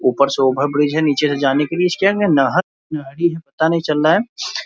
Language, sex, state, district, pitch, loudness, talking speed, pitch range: Hindi, male, Bihar, Muzaffarpur, 150 Hz, -17 LUFS, 255 wpm, 140-170 Hz